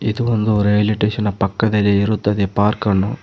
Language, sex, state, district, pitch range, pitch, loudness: Kannada, male, Karnataka, Koppal, 100-110 Hz, 105 Hz, -17 LUFS